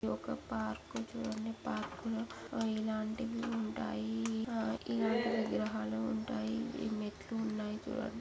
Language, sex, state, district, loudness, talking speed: Telugu, male, Andhra Pradesh, Chittoor, -38 LUFS, 95 wpm